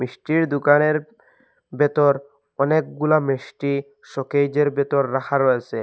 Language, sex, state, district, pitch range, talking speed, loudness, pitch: Bengali, male, Assam, Hailakandi, 135-150 Hz, 95 wpm, -20 LUFS, 140 Hz